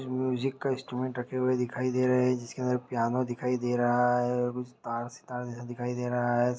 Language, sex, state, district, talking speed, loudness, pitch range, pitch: Hindi, male, Bihar, Saharsa, 220 wpm, -30 LUFS, 120-125 Hz, 125 Hz